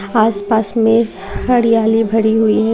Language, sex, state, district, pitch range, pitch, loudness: Hindi, female, Tripura, Unakoti, 220-225 Hz, 225 Hz, -14 LUFS